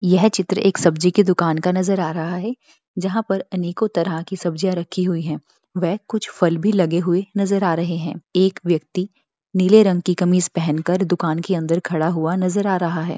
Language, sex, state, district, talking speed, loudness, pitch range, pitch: Hindi, female, Bihar, Bhagalpur, 215 wpm, -19 LUFS, 170-190 Hz, 180 Hz